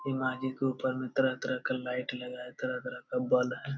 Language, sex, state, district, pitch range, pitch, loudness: Hindi, male, Bihar, Jamui, 125-130 Hz, 130 Hz, -33 LUFS